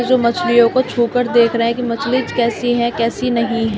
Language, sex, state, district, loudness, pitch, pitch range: Hindi, female, Uttar Pradesh, Shamli, -16 LUFS, 235 Hz, 230-245 Hz